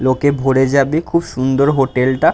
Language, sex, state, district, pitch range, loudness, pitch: Bengali, male, West Bengal, Dakshin Dinajpur, 130-145 Hz, -15 LUFS, 135 Hz